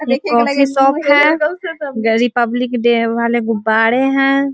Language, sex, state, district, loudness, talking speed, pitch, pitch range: Hindi, female, Bihar, Muzaffarpur, -14 LUFS, 145 wpm, 260 Hz, 235-280 Hz